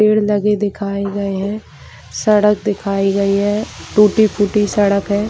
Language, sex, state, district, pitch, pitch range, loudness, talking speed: Hindi, female, Chhattisgarh, Bilaspur, 205 Hz, 200-210 Hz, -16 LUFS, 135 wpm